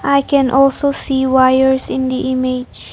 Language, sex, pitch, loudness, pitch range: English, female, 265 Hz, -14 LUFS, 260-275 Hz